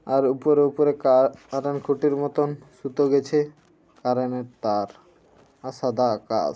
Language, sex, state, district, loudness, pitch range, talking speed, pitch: Bengali, male, West Bengal, Jhargram, -23 LUFS, 125-145 Hz, 135 wpm, 135 Hz